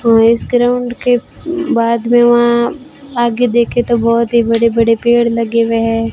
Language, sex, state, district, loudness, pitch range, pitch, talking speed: Hindi, female, Rajasthan, Bikaner, -13 LUFS, 230-245 Hz, 235 Hz, 175 wpm